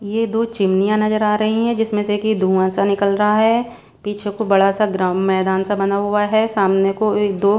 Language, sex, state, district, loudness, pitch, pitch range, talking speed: Hindi, female, Bihar, West Champaran, -17 LUFS, 205 Hz, 195-215 Hz, 245 wpm